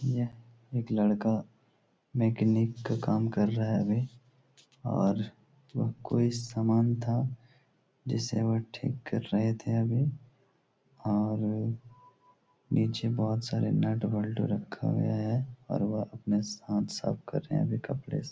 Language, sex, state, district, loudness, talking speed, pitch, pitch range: Hindi, male, Bihar, Supaul, -31 LUFS, 135 wpm, 115 Hz, 110-130 Hz